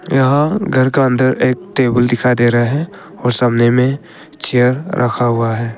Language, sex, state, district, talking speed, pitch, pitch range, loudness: Hindi, male, Arunachal Pradesh, Papum Pare, 175 wpm, 125 Hz, 120-135 Hz, -14 LUFS